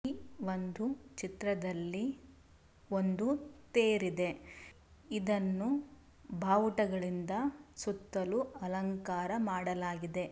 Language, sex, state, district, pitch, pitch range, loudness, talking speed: Kannada, female, Karnataka, Shimoga, 195 Hz, 180-230 Hz, -36 LUFS, 65 wpm